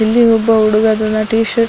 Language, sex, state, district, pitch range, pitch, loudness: Kannada, female, Karnataka, Dakshina Kannada, 215-225 Hz, 220 Hz, -12 LUFS